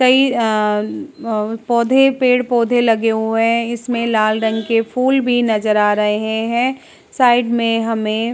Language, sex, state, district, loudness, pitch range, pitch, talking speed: Hindi, female, Uttar Pradesh, Jalaun, -16 LUFS, 220-245 Hz, 230 Hz, 160 wpm